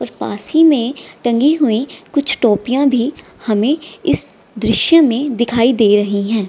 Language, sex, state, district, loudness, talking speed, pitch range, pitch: Hindi, female, Bihar, Gaya, -15 LUFS, 155 wpm, 225-285 Hz, 245 Hz